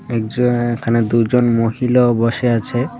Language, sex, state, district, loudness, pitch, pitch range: Bengali, male, Tripura, West Tripura, -16 LUFS, 120 Hz, 115-125 Hz